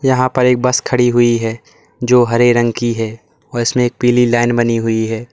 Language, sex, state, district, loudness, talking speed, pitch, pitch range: Hindi, male, Uttar Pradesh, Lalitpur, -14 LUFS, 215 wpm, 120 Hz, 115-125 Hz